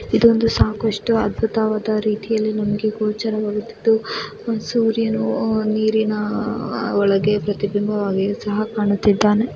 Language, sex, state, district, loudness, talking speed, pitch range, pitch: Kannada, female, Karnataka, Dharwad, -19 LUFS, 95 wpm, 210-225 Hz, 215 Hz